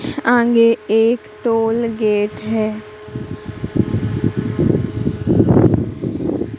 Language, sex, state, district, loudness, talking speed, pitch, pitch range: Hindi, female, Madhya Pradesh, Katni, -17 LUFS, 45 wpm, 225 Hz, 215-235 Hz